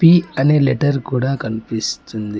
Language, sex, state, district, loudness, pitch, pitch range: Telugu, male, Telangana, Mahabubabad, -18 LUFS, 135 Hz, 110-145 Hz